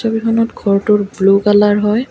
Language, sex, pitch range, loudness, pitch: Assamese, female, 200-225 Hz, -13 LUFS, 210 Hz